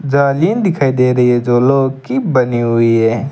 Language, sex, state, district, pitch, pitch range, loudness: Hindi, male, Rajasthan, Bikaner, 130 Hz, 120-140 Hz, -13 LUFS